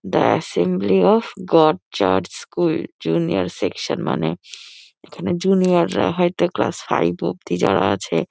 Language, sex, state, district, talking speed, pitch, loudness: Bengali, female, West Bengal, Kolkata, 135 wpm, 160 Hz, -19 LUFS